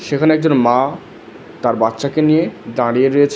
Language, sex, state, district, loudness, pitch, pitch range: Bengali, male, West Bengal, Alipurduar, -15 LUFS, 140 Hz, 120-155 Hz